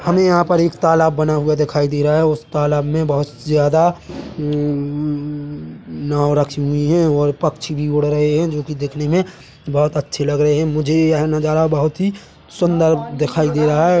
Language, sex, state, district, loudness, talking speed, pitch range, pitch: Hindi, male, Chhattisgarh, Bilaspur, -17 LUFS, 200 wpm, 145-160 Hz, 150 Hz